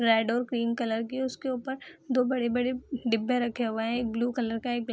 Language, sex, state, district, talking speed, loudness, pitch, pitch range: Hindi, female, Bihar, Madhepura, 245 wpm, -29 LUFS, 245 Hz, 230-255 Hz